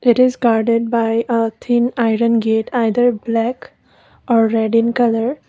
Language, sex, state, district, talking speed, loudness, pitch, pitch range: English, female, Assam, Kamrup Metropolitan, 155 wpm, -16 LUFS, 230 Hz, 225-240 Hz